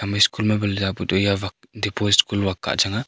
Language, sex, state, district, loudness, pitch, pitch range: Wancho, male, Arunachal Pradesh, Longding, -21 LUFS, 100 Hz, 100-105 Hz